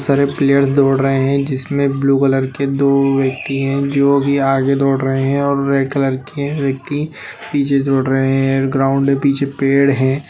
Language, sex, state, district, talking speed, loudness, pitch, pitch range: Hindi, male, Bihar, Bhagalpur, 185 wpm, -15 LUFS, 140 Hz, 135-140 Hz